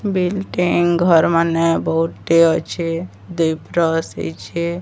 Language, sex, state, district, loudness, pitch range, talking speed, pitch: Odia, male, Odisha, Sambalpur, -18 LUFS, 165-175 Hz, 100 wpm, 165 Hz